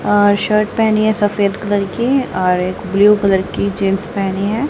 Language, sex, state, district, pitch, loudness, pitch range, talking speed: Hindi, female, Haryana, Charkhi Dadri, 205 Hz, -15 LUFS, 195-215 Hz, 190 wpm